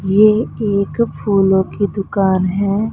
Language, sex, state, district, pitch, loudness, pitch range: Hindi, male, Punjab, Pathankot, 200 Hz, -16 LUFS, 195-215 Hz